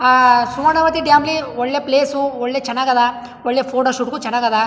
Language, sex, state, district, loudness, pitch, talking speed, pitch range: Kannada, male, Karnataka, Chamarajanagar, -16 LUFS, 255 Hz, 190 wpm, 245-280 Hz